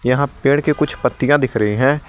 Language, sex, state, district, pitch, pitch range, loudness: Hindi, male, Jharkhand, Garhwa, 135 Hz, 125-145 Hz, -17 LUFS